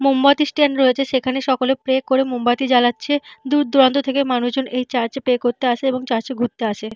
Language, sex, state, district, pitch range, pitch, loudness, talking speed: Bengali, female, Jharkhand, Jamtara, 245-275 Hz, 260 Hz, -18 LUFS, 215 wpm